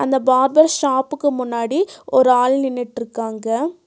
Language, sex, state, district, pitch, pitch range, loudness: Tamil, female, Tamil Nadu, Nilgiris, 260 Hz, 245-295 Hz, -17 LUFS